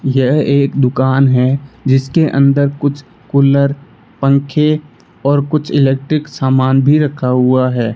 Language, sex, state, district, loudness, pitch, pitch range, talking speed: Hindi, male, Rajasthan, Bikaner, -13 LUFS, 140 Hz, 130-145 Hz, 130 wpm